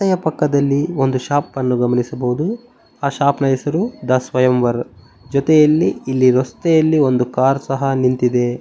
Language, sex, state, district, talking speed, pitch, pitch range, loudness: Kannada, male, Karnataka, Bellary, 125 wpm, 135 Hz, 125-150 Hz, -17 LUFS